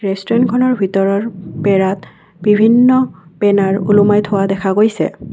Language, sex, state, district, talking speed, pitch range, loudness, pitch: Assamese, female, Assam, Kamrup Metropolitan, 110 wpm, 195-220 Hz, -14 LUFS, 200 Hz